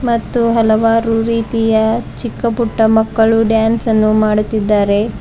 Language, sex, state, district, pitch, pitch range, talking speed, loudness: Kannada, female, Karnataka, Bidar, 225 Hz, 220-230 Hz, 105 wpm, -14 LUFS